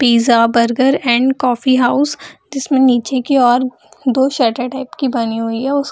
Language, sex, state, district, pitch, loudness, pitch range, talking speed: Hindi, female, Bihar, Gaya, 255 Hz, -14 LUFS, 240-270 Hz, 180 wpm